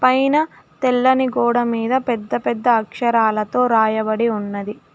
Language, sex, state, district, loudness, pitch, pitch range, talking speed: Telugu, female, Telangana, Hyderabad, -18 LUFS, 235 Hz, 220-255 Hz, 110 wpm